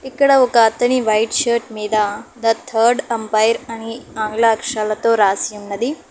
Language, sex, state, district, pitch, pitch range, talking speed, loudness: Telugu, female, Telangana, Hyderabad, 225 Hz, 215-240 Hz, 135 wpm, -17 LUFS